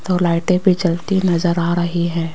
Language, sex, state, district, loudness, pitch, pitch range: Hindi, female, Rajasthan, Jaipur, -17 LUFS, 175 Hz, 170-180 Hz